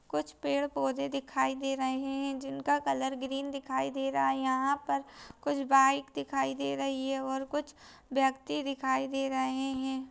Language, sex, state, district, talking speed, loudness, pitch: Hindi, female, Uttarakhand, Tehri Garhwal, 180 wpm, -32 LUFS, 265 Hz